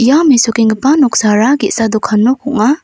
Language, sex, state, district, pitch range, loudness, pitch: Garo, female, Meghalaya, North Garo Hills, 220-280 Hz, -11 LUFS, 240 Hz